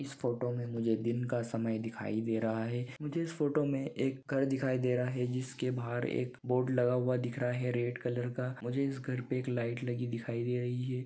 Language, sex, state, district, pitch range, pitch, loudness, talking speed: Hindi, male, Jharkhand, Sahebganj, 120-130 Hz, 125 Hz, -34 LUFS, 240 wpm